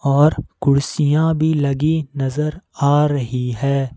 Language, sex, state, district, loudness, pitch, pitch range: Hindi, male, Jharkhand, Ranchi, -18 LUFS, 140 Hz, 140-155 Hz